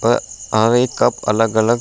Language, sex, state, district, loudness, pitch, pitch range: Hindi, male, Uttar Pradesh, Budaun, -16 LUFS, 115 Hz, 110-120 Hz